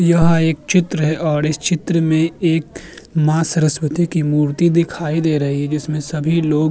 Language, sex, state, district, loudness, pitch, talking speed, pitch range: Hindi, male, Uttar Pradesh, Jyotiba Phule Nagar, -17 LUFS, 160 Hz, 185 wpm, 150-165 Hz